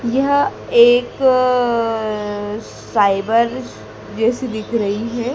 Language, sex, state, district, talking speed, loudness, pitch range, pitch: Hindi, female, Madhya Pradesh, Dhar, 80 wpm, -17 LUFS, 215-255 Hz, 235 Hz